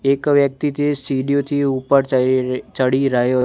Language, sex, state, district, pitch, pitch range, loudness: Gujarati, male, Gujarat, Gandhinagar, 135 Hz, 130-140 Hz, -18 LUFS